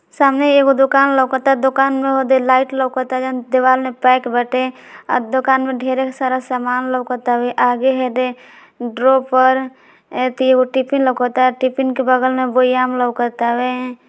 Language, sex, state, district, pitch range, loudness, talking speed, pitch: Hindi, female, Bihar, Gopalganj, 250-265 Hz, -16 LUFS, 125 wpm, 255 Hz